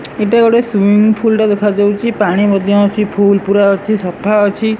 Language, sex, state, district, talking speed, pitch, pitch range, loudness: Odia, male, Odisha, Sambalpur, 160 wpm, 205 Hz, 200-215 Hz, -12 LUFS